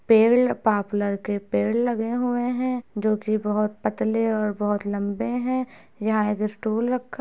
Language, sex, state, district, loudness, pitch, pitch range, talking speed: Hindi, female, Bihar, Muzaffarpur, -24 LUFS, 220 Hz, 210-240 Hz, 160 wpm